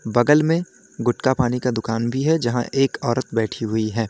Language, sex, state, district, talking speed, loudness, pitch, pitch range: Hindi, male, Uttar Pradesh, Lalitpur, 205 wpm, -21 LUFS, 120 Hz, 115-135 Hz